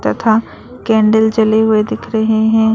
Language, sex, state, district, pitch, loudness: Hindi, female, Arunachal Pradesh, Lower Dibang Valley, 220 Hz, -13 LUFS